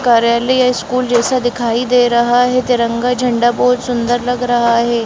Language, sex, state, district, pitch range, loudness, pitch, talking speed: Hindi, female, Bihar, Bhagalpur, 235-250 Hz, -14 LUFS, 245 Hz, 175 wpm